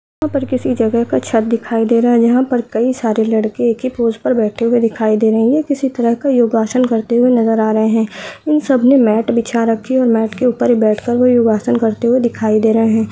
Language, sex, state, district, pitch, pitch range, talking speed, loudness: Hindi, female, Bihar, Saharsa, 235 Hz, 225-250 Hz, 265 wpm, -14 LUFS